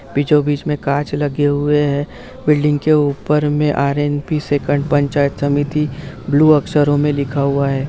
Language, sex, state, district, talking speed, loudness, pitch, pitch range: Hindi, male, West Bengal, Purulia, 165 wpm, -16 LUFS, 145 Hz, 140-150 Hz